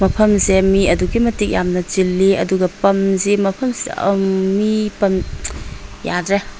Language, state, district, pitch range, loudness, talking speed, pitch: Manipuri, Manipur, Imphal West, 190-205 Hz, -16 LUFS, 135 wpm, 195 Hz